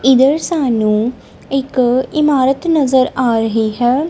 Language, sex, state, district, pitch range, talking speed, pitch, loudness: Punjabi, female, Punjab, Kapurthala, 240-280 Hz, 115 wpm, 260 Hz, -14 LUFS